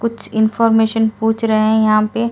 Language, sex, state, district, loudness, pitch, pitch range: Hindi, female, Delhi, New Delhi, -15 LUFS, 220 Hz, 220-230 Hz